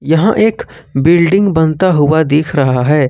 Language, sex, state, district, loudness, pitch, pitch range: Hindi, male, Jharkhand, Ranchi, -11 LUFS, 160 Hz, 150-185 Hz